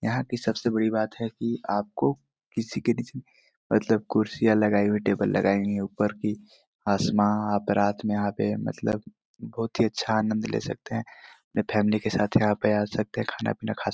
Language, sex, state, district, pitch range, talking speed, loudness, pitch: Hindi, male, Chhattisgarh, Korba, 105-110 Hz, 200 wpm, -26 LUFS, 105 Hz